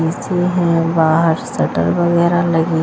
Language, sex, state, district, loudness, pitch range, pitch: Hindi, female, Himachal Pradesh, Shimla, -15 LUFS, 160-175 Hz, 165 Hz